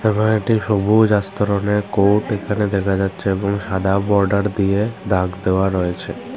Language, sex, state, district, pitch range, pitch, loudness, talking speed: Bengali, male, Tripura, Unakoti, 95-105 Hz, 100 Hz, -18 LUFS, 130 wpm